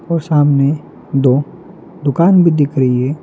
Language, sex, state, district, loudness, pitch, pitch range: Hindi, male, Madhya Pradesh, Dhar, -13 LUFS, 145 Hz, 140-170 Hz